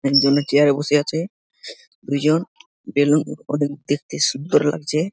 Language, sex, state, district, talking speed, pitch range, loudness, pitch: Bengali, male, West Bengal, Dakshin Dinajpur, 140 wpm, 145-160 Hz, -19 LUFS, 145 Hz